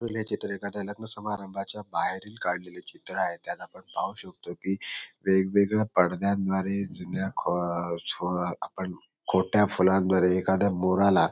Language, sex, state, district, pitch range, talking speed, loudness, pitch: Marathi, male, Maharashtra, Sindhudurg, 90-100 Hz, 120 wpm, -28 LUFS, 95 Hz